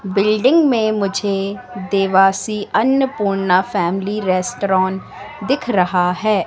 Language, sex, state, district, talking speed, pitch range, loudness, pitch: Hindi, female, Madhya Pradesh, Katni, 95 wpm, 190-215 Hz, -17 LUFS, 195 Hz